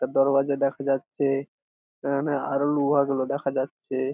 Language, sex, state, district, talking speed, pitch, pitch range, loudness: Bengali, male, West Bengal, Jhargram, 160 wpm, 140 Hz, 135-140 Hz, -25 LUFS